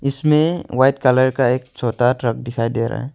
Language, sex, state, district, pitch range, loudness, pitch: Hindi, male, Arunachal Pradesh, Longding, 120-135 Hz, -18 LUFS, 130 Hz